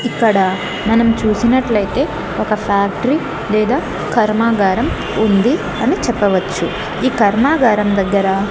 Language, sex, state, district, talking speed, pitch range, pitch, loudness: Telugu, female, Andhra Pradesh, Annamaya, 90 wpm, 200-235 Hz, 215 Hz, -15 LUFS